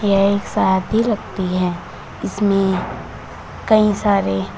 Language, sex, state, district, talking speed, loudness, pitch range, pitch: Hindi, female, Uttar Pradesh, Shamli, 105 wpm, -18 LUFS, 185-210 Hz, 195 Hz